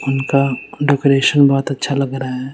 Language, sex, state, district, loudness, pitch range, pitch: Hindi, male, Haryana, Rohtak, -16 LUFS, 135-140 Hz, 135 Hz